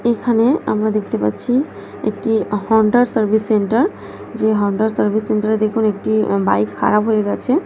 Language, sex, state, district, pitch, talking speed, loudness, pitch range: Bengali, female, West Bengal, North 24 Parganas, 215 Hz, 150 wpm, -17 LUFS, 210-230 Hz